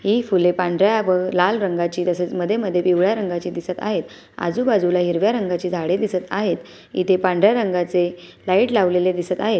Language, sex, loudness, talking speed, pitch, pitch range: Marathi, female, -20 LUFS, 160 wpm, 185 Hz, 180-205 Hz